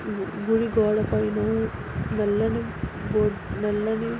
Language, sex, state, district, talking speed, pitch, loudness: Telugu, female, Andhra Pradesh, Guntur, 130 wpm, 210 Hz, -25 LUFS